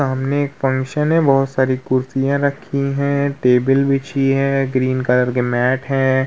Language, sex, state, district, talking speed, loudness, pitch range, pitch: Hindi, male, Uttar Pradesh, Hamirpur, 165 wpm, -17 LUFS, 130-140 Hz, 135 Hz